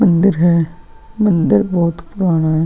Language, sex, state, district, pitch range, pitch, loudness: Hindi, female, Bihar, Vaishali, 165-195 Hz, 175 Hz, -15 LUFS